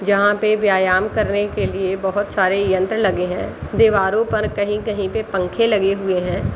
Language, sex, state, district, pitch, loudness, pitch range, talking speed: Hindi, female, Bihar, Kishanganj, 200 Hz, -18 LUFS, 190-215 Hz, 175 wpm